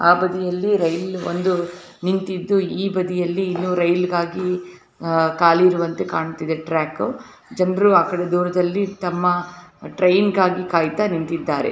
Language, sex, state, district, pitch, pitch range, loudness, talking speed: Kannada, female, Karnataka, Dharwad, 180 Hz, 175-185 Hz, -20 LUFS, 125 wpm